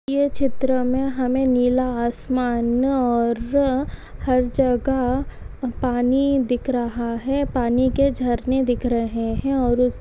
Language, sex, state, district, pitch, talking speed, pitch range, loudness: Hindi, female, Maharashtra, Nagpur, 255 Hz, 125 wpm, 245-265 Hz, -21 LUFS